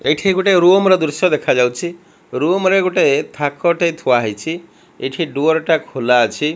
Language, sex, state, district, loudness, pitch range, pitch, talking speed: Odia, male, Odisha, Malkangiri, -15 LUFS, 140-180 Hz, 160 Hz, 165 wpm